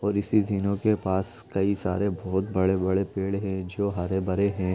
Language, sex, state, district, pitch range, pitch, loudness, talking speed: Hindi, male, Chhattisgarh, Rajnandgaon, 95-100 Hz, 95 Hz, -26 LUFS, 200 wpm